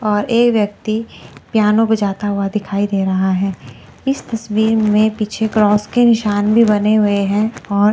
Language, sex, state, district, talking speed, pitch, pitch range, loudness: Hindi, female, Chandigarh, Chandigarh, 175 wpm, 210 Hz, 200-220 Hz, -16 LUFS